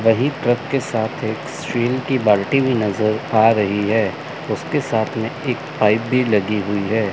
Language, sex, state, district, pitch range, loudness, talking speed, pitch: Hindi, male, Chandigarh, Chandigarh, 105-125 Hz, -19 LUFS, 185 wpm, 110 Hz